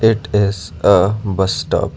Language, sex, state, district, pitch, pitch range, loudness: English, male, Karnataka, Bangalore, 100 Hz, 95-105 Hz, -16 LUFS